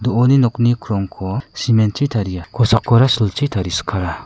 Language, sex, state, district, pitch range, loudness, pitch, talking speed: Garo, male, Meghalaya, South Garo Hills, 95-125 Hz, -17 LUFS, 115 Hz, 125 wpm